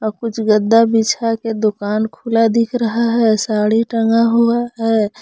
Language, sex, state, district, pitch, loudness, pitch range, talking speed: Hindi, female, Jharkhand, Palamu, 225 Hz, -15 LUFS, 220-230 Hz, 150 wpm